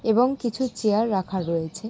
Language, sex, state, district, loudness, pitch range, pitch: Bengali, female, West Bengal, Jalpaiguri, -24 LUFS, 190-235 Hz, 220 Hz